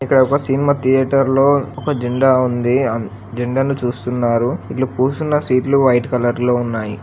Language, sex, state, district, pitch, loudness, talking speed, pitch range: Telugu, male, Telangana, Karimnagar, 130 Hz, -16 LUFS, 155 wpm, 120-135 Hz